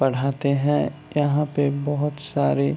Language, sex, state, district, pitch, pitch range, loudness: Hindi, male, Bihar, Begusarai, 145 Hz, 140-145 Hz, -23 LUFS